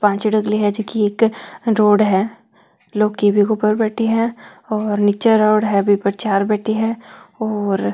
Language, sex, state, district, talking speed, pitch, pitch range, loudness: Marwari, female, Rajasthan, Nagaur, 165 wpm, 215 Hz, 205-220 Hz, -17 LUFS